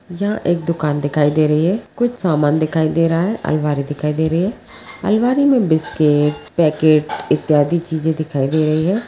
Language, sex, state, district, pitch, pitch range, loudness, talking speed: Magahi, female, Bihar, Gaya, 160 Hz, 150-180 Hz, -17 LUFS, 185 wpm